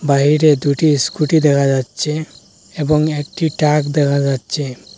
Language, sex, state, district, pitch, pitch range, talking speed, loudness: Bengali, male, Assam, Hailakandi, 150 Hz, 140-155 Hz, 120 wpm, -16 LUFS